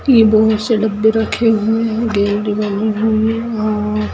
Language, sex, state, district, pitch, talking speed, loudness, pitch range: Hindi, female, Bihar, Gopalganj, 220 Hz, 100 wpm, -15 LUFS, 210-225 Hz